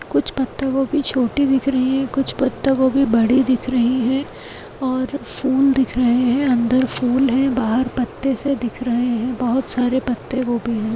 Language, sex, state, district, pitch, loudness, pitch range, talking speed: Hindi, female, Chhattisgarh, Kabirdham, 255 Hz, -18 LUFS, 245-270 Hz, 180 wpm